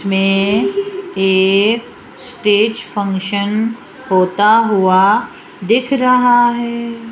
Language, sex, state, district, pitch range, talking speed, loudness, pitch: Hindi, female, Rajasthan, Jaipur, 195-240 Hz, 75 wpm, -14 LUFS, 215 Hz